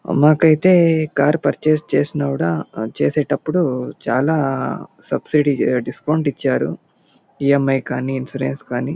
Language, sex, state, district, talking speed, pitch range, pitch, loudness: Telugu, male, Andhra Pradesh, Anantapur, 115 wpm, 130-155 Hz, 140 Hz, -18 LUFS